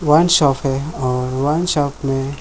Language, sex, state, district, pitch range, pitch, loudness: Hindi, male, Jharkhand, Jamtara, 135-150 Hz, 140 Hz, -17 LUFS